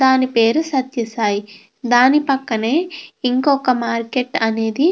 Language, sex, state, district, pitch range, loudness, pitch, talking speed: Telugu, female, Andhra Pradesh, Krishna, 225-275 Hz, -17 LUFS, 250 Hz, 110 wpm